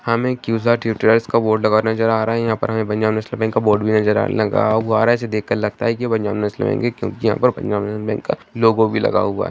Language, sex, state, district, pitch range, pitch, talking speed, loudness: Hindi, male, Bihar, Jamui, 110-115 Hz, 110 Hz, 310 wpm, -18 LUFS